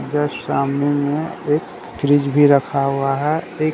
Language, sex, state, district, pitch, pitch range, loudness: Hindi, male, Bihar, Katihar, 145 Hz, 140-150 Hz, -18 LUFS